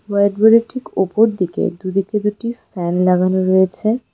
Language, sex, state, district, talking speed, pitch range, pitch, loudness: Bengali, female, West Bengal, Darjeeling, 145 wpm, 185-220 Hz, 200 Hz, -17 LUFS